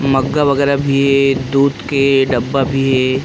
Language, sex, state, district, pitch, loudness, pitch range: Chhattisgarhi, male, Chhattisgarh, Rajnandgaon, 135 Hz, -14 LUFS, 135-140 Hz